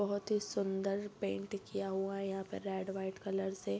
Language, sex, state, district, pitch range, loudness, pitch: Hindi, female, Bihar, Bhagalpur, 190-200 Hz, -38 LUFS, 195 Hz